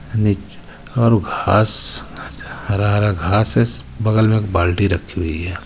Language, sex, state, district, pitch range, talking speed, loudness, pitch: Hindi, male, Jharkhand, Ranchi, 85-110 Hz, 115 wpm, -16 LUFS, 100 Hz